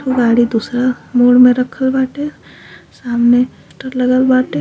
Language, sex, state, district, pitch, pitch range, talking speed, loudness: Bhojpuri, female, Uttar Pradesh, Gorakhpur, 250 Hz, 240-260 Hz, 115 wpm, -13 LUFS